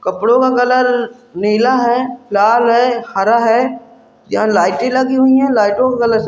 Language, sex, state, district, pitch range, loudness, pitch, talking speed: Hindi, male, Andhra Pradesh, Anantapur, 225-250 Hz, -13 LUFS, 240 Hz, 170 wpm